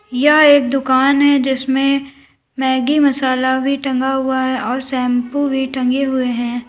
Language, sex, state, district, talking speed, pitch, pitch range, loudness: Hindi, female, Uttar Pradesh, Lalitpur, 150 wpm, 265 Hz, 260-275 Hz, -15 LUFS